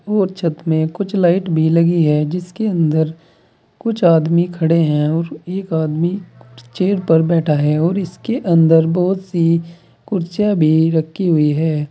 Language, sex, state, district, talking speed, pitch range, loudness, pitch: Hindi, male, Uttar Pradesh, Saharanpur, 155 wpm, 160-180 Hz, -16 LUFS, 165 Hz